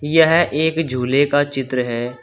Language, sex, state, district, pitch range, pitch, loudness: Hindi, male, Uttar Pradesh, Shamli, 125-160 Hz, 145 Hz, -17 LUFS